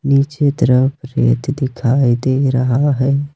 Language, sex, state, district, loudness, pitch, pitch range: Hindi, male, Jharkhand, Ranchi, -15 LUFS, 135 Hz, 125-140 Hz